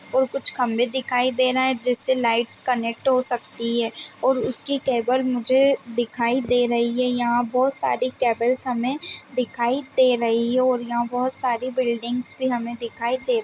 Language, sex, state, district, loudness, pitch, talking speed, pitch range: Hindi, female, Chhattisgarh, Raigarh, -22 LUFS, 250 Hz, 180 wpm, 235-260 Hz